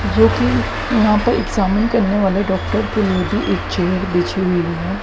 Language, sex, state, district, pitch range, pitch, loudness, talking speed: Hindi, female, Haryana, Jhajjar, 120-200 Hz, 185 Hz, -17 LUFS, 180 wpm